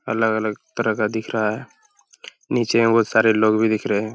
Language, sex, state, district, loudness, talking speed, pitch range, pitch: Hindi, male, Uttar Pradesh, Hamirpur, -20 LUFS, 215 wpm, 110-115 Hz, 110 Hz